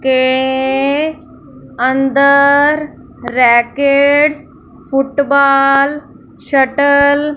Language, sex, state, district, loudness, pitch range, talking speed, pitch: Hindi, female, Punjab, Fazilka, -12 LUFS, 265-285 Hz, 50 wpm, 275 Hz